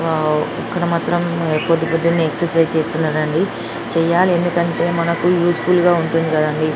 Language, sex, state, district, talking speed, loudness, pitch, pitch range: Telugu, female, Andhra Pradesh, Srikakulam, 125 wpm, -17 LUFS, 165 Hz, 160-175 Hz